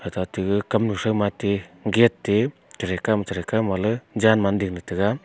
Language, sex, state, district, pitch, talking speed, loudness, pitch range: Wancho, male, Arunachal Pradesh, Longding, 100 Hz, 230 wpm, -23 LUFS, 95-110 Hz